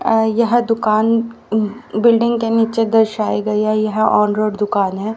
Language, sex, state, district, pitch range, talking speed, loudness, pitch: Hindi, female, Haryana, Rohtak, 215-230 Hz, 160 wpm, -16 LUFS, 220 Hz